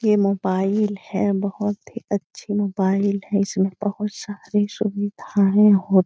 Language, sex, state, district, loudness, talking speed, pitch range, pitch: Hindi, female, Bihar, Jahanabad, -21 LUFS, 140 wpm, 195-205 Hz, 205 Hz